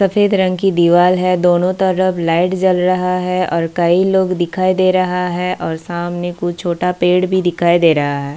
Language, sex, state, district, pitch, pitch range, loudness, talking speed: Hindi, female, Bihar, Kishanganj, 180 Hz, 175-185 Hz, -15 LUFS, 200 wpm